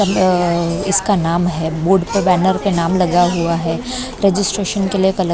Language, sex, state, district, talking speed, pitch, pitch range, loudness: Hindi, female, Maharashtra, Mumbai Suburban, 180 wpm, 185 Hz, 170-195 Hz, -16 LUFS